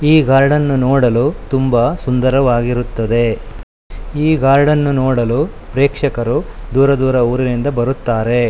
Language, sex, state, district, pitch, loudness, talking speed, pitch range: Kannada, male, Karnataka, Shimoga, 130 Hz, -14 LUFS, 100 wpm, 120-140 Hz